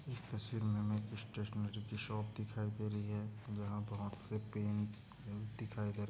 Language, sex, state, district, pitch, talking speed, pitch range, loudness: Hindi, male, Maharashtra, Aurangabad, 105 Hz, 185 wpm, 105-110 Hz, -43 LUFS